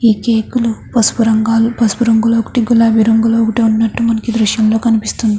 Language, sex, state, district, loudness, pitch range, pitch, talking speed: Telugu, female, Andhra Pradesh, Chittoor, -13 LUFS, 220-230 Hz, 225 Hz, 180 wpm